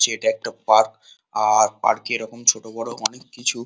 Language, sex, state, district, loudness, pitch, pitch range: Bengali, male, West Bengal, Kolkata, -21 LUFS, 115 Hz, 110-120 Hz